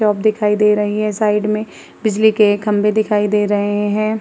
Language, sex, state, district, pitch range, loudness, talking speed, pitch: Hindi, female, Uttar Pradesh, Muzaffarnagar, 210-215 Hz, -16 LUFS, 185 wpm, 210 Hz